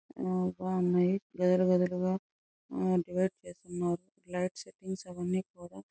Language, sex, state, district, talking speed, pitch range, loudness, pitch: Telugu, male, Andhra Pradesh, Chittoor, 100 wpm, 180-185 Hz, -32 LUFS, 180 Hz